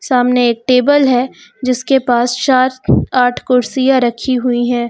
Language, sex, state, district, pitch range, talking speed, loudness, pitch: Hindi, female, Uttar Pradesh, Lucknow, 245-260 Hz, 145 wpm, -13 LUFS, 250 Hz